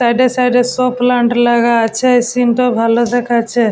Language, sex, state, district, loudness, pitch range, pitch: Bengali, female, West Bengal, Jalpaiguri, -13 LUFS, 235-250 Hz, 245 Hz